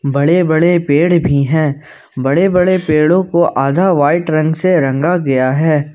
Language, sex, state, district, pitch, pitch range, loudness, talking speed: Hindi, male, Jharkhand, Ranchi, 160 Hz, 145-175 Hz, -13 LUFS, 160 wpm